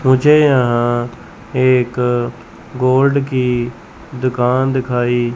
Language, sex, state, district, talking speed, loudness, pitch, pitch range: Hindi, male, Chandigarh, Chandigarh, 90 wpm, -15 LUFS, 125 Hz, 120-130 Hz